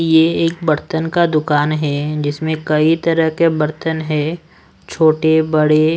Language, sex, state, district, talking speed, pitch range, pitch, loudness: Hindi, male, Odisha, Sambalpur, 140 wpm, 150-165 Hz, 160 Hz, -16 LUFS